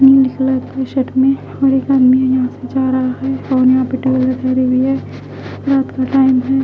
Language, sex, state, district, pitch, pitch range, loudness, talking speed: Hindi, female, Haryana, Charkhi Dadri, 260 Hz, 255-270 Hz, -14 LUFS, 210 wpm